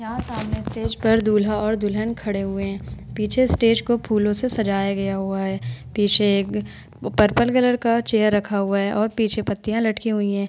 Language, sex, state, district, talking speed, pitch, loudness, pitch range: Hindi, female, Uttar Pradesh, Etah, 195 wpm, 210 Hz, -21 LUFS, 200-225 Hz